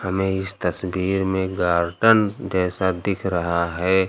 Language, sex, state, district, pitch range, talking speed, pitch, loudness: Hindi, male, Uttar Pradesh, Lucknow, 90-95 Hz, 130 wpm, 95 Hz, -21 LUFS